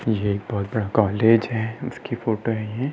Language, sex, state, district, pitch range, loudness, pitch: Hindi, male, Uttar Pradesh, Muzaffarnagar, 105-115 Hz, -23 LUFS, 110 Hz